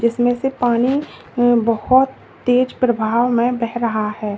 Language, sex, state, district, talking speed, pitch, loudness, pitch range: Hindi, female, Uttar Pradesh, Lalitpur, 135 wpm, 240 Hz, -17 LUFS, 230-250 Hz